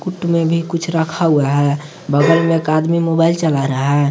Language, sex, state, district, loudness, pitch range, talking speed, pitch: Hindi, male, Jharkhand, Garhwa, -16 LUFS, 145-170 Hz, 220 wpm, 165 Hz